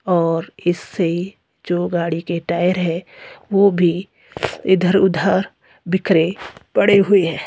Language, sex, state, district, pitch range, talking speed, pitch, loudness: Hindi, female, Himachal Pradesh, Shimla, 170-195 Hz, 120 wpm, 180 Hz, -18 LUFS